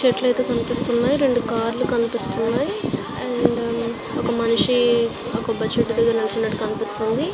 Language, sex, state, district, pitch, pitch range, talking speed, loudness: Telugu, female, Andhra Pradesh, Visakhapatnam, 235 Hz, 230-245 Hz, 140 wpm, -20 LUFS